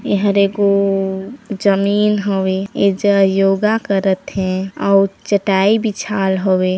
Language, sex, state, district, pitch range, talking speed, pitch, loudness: Chhattisgarhi, female, Chhattisgarh, Sarguja, 195-205 Hz, 125 wpm, 200 Hz, -16 LUFS